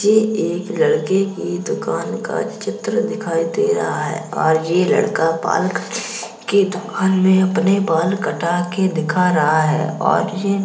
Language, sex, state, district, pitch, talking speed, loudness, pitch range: Hindi, male, Uttar Pradesh, Jalaun, 190 Hz, 160 wpm, -18 LUFS, 165-210 Hz